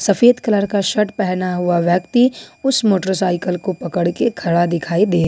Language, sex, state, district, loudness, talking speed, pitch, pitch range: Hindi, female, Jharkhand, Ranchi, -17 LUFS, 160 wpm, 190 Hz, 175-210 Hz